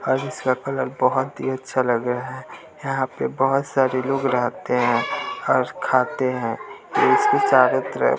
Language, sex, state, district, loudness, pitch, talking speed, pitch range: Hindi, male, Bihar, West Champaran, -21 LUFS, 130 Hz, 160 wpm, 130-140 Hz